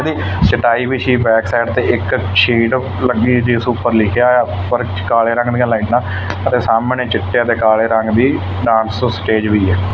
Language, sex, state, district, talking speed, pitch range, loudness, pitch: Punjabi, male, Punjab, Fazilka, 175 wpm, 100-120 Hz, -14 LUFS, 115 Hz